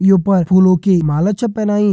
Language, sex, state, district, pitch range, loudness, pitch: Hindi, male, Uttarakhand, Uttarkashi, 185-205 Hz, -14 LUFS, 195 Hz